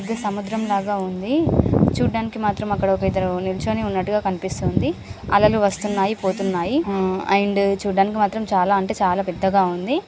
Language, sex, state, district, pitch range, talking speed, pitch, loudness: Telugu, female, Andhra Pradesh, Srikakulam, 190-205 Hz, 135 wpm, 195 Hz, -21 LUFS